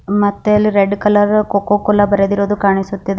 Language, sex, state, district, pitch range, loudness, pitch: Kannada, female, Karnataka, Bidar, 200-205 Hz, -14 LUFS, 205 Hz